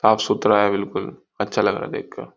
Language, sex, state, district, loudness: Hindi, male, Uttar Pradesh, Gorakhpur, -21 LUFS